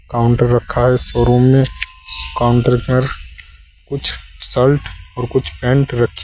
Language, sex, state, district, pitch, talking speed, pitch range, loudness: Hindi, male, Uttar Pradesh, Saharanpur, 120 Hz, 125 wpm, 80-125 Hz, -15 LUFS